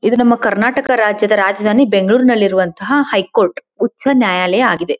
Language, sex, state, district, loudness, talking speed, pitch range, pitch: Kannada, female, Karnataka, Belgaum, -13 LUFS, 130 wpm, 200-255 Hz, 220 Hz